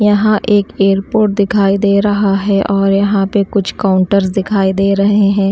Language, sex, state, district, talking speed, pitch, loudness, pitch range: Hindi, female, Delhi, New Delhi, 175 wpm, 200 Hz, -13 LUFS, 195-205 Hz